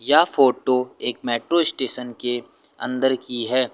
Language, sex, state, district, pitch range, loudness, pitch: Hindi, male, Uttar Pradesh, Lucknow, 125-130 Hz, -21 LUFS, 130 Hz